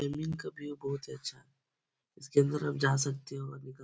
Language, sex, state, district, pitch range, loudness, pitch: Hindi, male, Bihar, Supaul, 135-145 Hz, -34 LUFS, 140 Hz